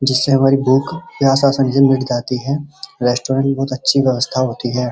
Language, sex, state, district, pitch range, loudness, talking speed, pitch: Hindi, male, Uttar Pradesh, Muzaffarnagar, 130-135 Hz, -16 LUFS, 145 wpm, 135 Hz